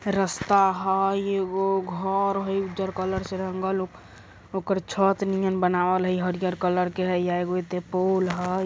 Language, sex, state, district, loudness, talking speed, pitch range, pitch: Bajjika, female, Bihar, Vaishali, -25 LUFS, 160 wpm, 180-195 Hz, 190 Hz